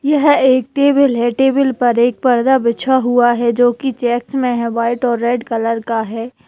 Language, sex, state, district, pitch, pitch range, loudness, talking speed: Hindi, female, Bihar, Jahanabad, 245 Hz, 235-265 Hz, -14 LUFS, 205 wpm